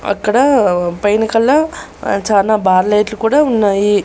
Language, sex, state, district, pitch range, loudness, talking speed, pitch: Telugu, female, Andhra Pradesh, Annamaya, 200-225 Hz, -13 LUFS, 135 wpm, 210 Hz